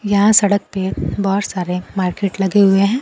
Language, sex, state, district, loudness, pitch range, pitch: Hindi, female, Bihar, Kaimur, -16 LUFS, 190-205 Hz, 200 Hz